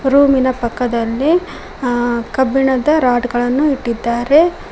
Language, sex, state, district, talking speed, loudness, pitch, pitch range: Kannada, female, Karnataka, Koppal, 90 wpm, -15 LUFS, 255 Hz, 240-280 Hz